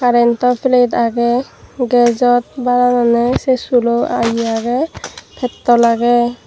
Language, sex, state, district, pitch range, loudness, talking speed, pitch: Chakma, female, Tripura, Dhalai, 235-245 Hz, -14 LUFS, 110 wpm, 240 Hz